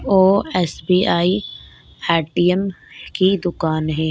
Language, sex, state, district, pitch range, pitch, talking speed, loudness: Hindi, female, Rajasthan, Nagaur, 160-190 Hz, 175 Hz, 85 wpm, -18 LUFS